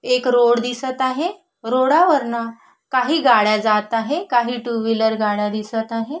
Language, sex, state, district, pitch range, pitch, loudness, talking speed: Marathi, female, Maharashtra, Solapur, 225-260 Hz, 240 Hz, -18 LUFS, 145 wpm